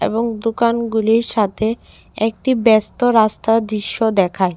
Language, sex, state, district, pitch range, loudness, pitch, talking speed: Bengali, female, Tripura, West Tripura, 215-230 Hz, -17 LUFS, 225 Hz, 105 wpm